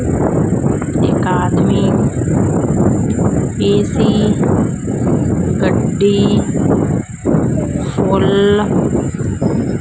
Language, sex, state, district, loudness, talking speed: Punjabi, female, Punjab, Fazilka, -14 LUFS, 30 wpm